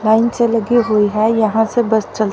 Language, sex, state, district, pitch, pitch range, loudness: Hindi, female, Haryana, Charkhi Dadri, 220 Hz, 215-235 Hz, -15 LUFS